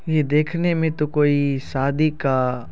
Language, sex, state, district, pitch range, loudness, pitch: Hindi, male, Bihar, Saran, 135-155 Hz, -20 LUFS, 150 Hz